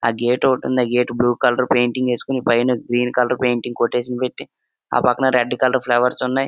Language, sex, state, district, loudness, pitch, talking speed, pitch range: Telugu, male, Andhra Pradesh, Srikakulam, -18 LUFS, 125 Hz, 195 wpm, 120-125 Hz